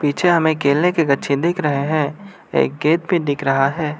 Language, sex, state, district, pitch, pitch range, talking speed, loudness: Hindi, male, Arunachal Pradesh, Lower Dibang Valley, 150 Hz, 140-170 Hz, 210 wpm, -18 LUFS